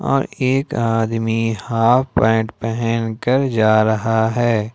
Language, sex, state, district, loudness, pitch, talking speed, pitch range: Hindi, male, Jharkhand, Ranchi, -18 LUFS, 115 Hz, 125 wpm, 110-120 Hz